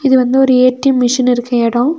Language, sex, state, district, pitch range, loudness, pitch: Tamil, female, Tamil Nadu, Nilgiris, 245-265 Hz, -12 LUFS, 255 Hz